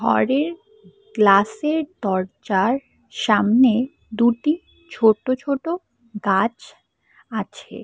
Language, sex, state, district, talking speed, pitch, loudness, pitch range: Bengali, female, Assam, Hailakandi, 70 wpm, 240 Hz, -20 LUFS, 210-300 Hz